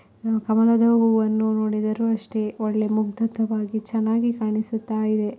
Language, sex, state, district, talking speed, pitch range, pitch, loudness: Kannada, female, Karnataka, Shimoga, 100 wpm, 215-225 Hz, 220 Hz, -22 LUFS